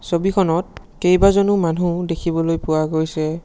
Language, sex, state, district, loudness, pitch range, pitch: Assamese, male, Assam, Sonitpur, -18 LUFS, 165-190 Hz, 170 Hz